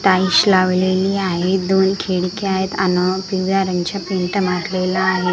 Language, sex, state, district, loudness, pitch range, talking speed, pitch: Marathi, female, Maharashtra, Gondia, -17 LUFS, 185-190 Hz, 100 wpm, 185 Hz